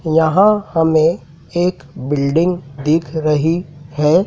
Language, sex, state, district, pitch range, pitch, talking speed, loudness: Hindi, male, Madhya Pradesh, Dhar, 150-175 Hz, 160 Hz, 100 wpm, -16 LUFS